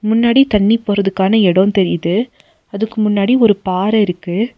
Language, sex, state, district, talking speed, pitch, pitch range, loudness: Tamil, female, Tamil Nadu, Nilgiris, 130 wpm, 205 Hz, 190-220 Hz, -14 LUFS